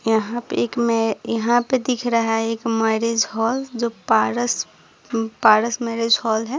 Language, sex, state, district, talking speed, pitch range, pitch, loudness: Hindi, female, Bihar, Saran, 165 wpm, 225-240 Hz, 230 Hz, -20 LUFS